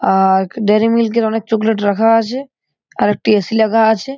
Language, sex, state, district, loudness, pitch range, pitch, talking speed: Bengali, male, West Bengal, Purulia, -14 LUFS, 210-225 Hz, 220 Hz, 185 wpm